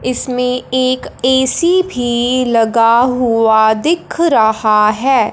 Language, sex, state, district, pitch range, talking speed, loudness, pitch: Hindi, male, Punjab, Fazilka, 225-255 Hz, 100 wpm, -13 LUFS, 250 Hz